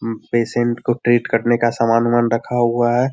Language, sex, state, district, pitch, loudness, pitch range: Hindi, male, Bihar, Sitamarhi, 120 Hz, -17 LUFS, 115-120 Hz